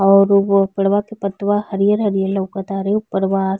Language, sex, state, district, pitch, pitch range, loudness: Bhojpuri, female, Bihar, East Champaran, 195 Hz, 195-200 Hz, -17 LUFS